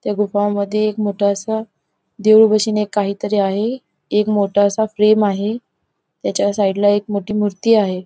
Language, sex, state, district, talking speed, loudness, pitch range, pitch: Marathi, female, Goa, North and South Goa, 150 wpm, -17 LUFS, 200-215 Hz, 205 Hz